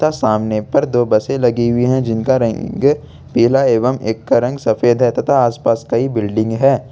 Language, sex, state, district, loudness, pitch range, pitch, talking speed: Hindi, male, Jharkhand, Ranchi, -15 LUFS, 110-130 Hz, 120 Hz, 190 wpm